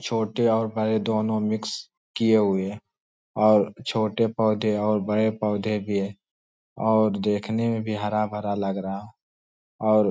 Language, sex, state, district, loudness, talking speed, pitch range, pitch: Hindi, male, Jharkhand, Sahebganj, -24 LUFS, 160 wpm, 100-110 Hz, 105 Hz